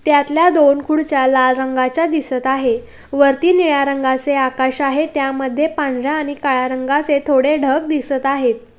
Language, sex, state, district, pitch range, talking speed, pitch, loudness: Marathi, female, Maharashtra, Pune, 265-295 Hz, 145 wpm, 275 Hz, -16 LUFS